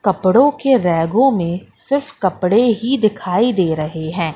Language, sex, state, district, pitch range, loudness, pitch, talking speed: Hindi, female, Madhya Pradesh, Katni, 175-255 Hz, -16 LUFS, 195 Hz, 150 wpm